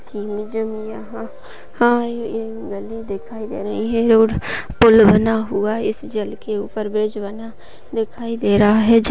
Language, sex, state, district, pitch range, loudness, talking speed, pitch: Hindi, female, Maharashtra, Nagpur, 210-230 Hz, -18 LUFS, 140 wpm, 220 Hz